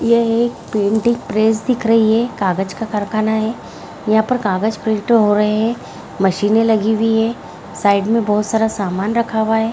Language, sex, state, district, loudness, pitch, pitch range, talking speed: Hindi, female, Bihar, Jahanabad, -16 LUFS, 220 Hz, 210-225 Hz, 185 wpm